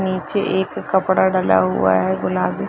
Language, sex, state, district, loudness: Hindi, female, Bihar, Madhepura, -18 LUFS